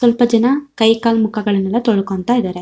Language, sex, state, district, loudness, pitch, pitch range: Kannada, female, Karnataka, Shimoga, -15 LUFS, 225 Hz, 205-240 Hz